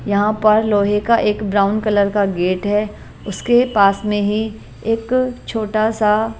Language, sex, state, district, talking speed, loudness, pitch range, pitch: Hindi, female, Punjab, Kapurthala, 170 wpm, -17 LUFS, 205-220 Hz, 210 Hz